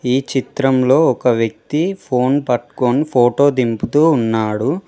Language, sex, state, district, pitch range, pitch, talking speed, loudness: Telugu, male, Telangana, Mahabubabad, 120-140 Hz, 130 Hz, 110 wpm, -16 LUFS